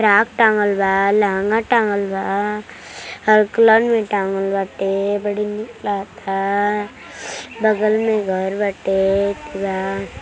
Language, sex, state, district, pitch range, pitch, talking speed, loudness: Hindi, female, Uttar Pradesh, Deoria, 195-215 Hz, 205 Hz, 115 wpm, -18 LUFS